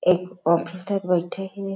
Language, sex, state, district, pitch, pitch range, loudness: Chhattisgarhi, female, Chhattisgarh, Jashpur, 180 Hz, 175-195 Hz, -24 LUFS